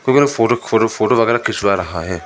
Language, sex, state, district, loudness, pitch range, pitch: Hindi, male, Arunachal Pradesh, Lower Dibang Valley, -16 LUFS, 90-120 Hz, 110 Hz